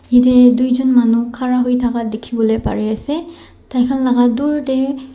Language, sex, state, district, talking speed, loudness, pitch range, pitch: Nagamese, male, Nagaland, Dimapur, 140 wpm, -15 LUFS, 240-265 Hz, 250 Hz